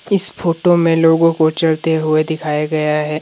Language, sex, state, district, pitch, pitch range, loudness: Hindi, male, Himachal Pradesh, Shimla, 160 Hz, 155-165 Hz, -15 LUFS